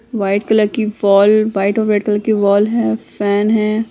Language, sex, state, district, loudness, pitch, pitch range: Hindi, female, Bihar, Sitamarhi, -14 LUFS, 210 Hz, 200-215 Hz